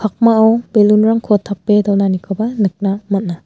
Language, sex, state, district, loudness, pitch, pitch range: Garo, female, Meghalaya, West Garo Hills, -14 LUFS, 210 Hz, 195-220 Hz